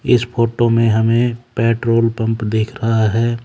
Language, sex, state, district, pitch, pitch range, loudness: Hindi, male, Haryana, Charkhi Dadri, 115 Hz, 115-120 Hz, -16 LUFS